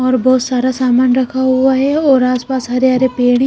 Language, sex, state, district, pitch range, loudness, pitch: Hindi, female, Punjab, Kapurthala, 255-260 Hz, -13 LUFS, 255 Hz